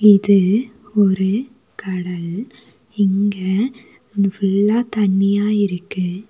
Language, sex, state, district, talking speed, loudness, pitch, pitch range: Tamil, female, Tamil Nadu, Nilgiris, 65 wpm, -18 LUFS, 200 Hz, 190-215 Hz